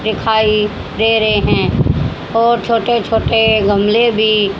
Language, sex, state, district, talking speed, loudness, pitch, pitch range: Hindi, female, Haryana, Jhajjar, 115 wpm, -13 LUFS, 220 Hz, 215-225 Hz